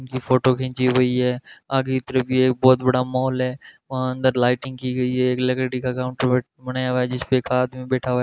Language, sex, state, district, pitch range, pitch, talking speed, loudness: Hindi, male, Rajasthan, Bikaner, 125-130 Hz, 130 Hz, 255 wpm, -21 LUFS